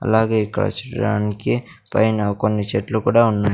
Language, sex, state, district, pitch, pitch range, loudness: Telugu, male, Andhra Pradesh, Sri Satya Sai, 105 Hz, 100-110 Hz, -20 LUFS